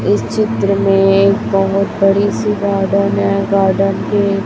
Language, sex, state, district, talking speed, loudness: Hindi, male, Chhattisgarh, Raipur, 150 wpm, -14 LUFS